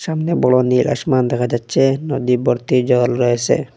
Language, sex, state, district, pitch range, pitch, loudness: Bengali, male, Assam, Hailakandi, 120-135 Hz, 125 Hz, -16 LUFS